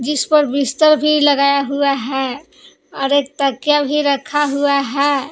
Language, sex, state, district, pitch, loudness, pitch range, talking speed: Hindi, female, Jharkhand, Palamu, 280 Hz, -15 LUFS, 275-295 Hz, 160 wpm